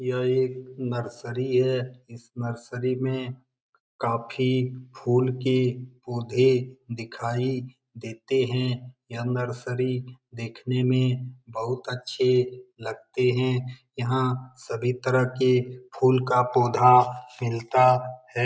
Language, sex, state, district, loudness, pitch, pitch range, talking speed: Hindi, male, Bihar, Lakhisarai, -25 LUFS, 125 Hz, 125-130 Hz, 105 wpm